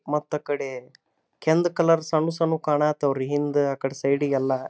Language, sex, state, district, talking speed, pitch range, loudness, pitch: Kannada, male, Karnataka, Dharwad, 155 wpm, 135-155 Hz, -24 LUFS, 145 Hz